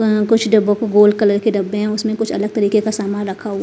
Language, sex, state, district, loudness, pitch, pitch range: Hindi, female, Punjab, Kapurthala, -16 LUFS, 210 Hz, 205-220 Hz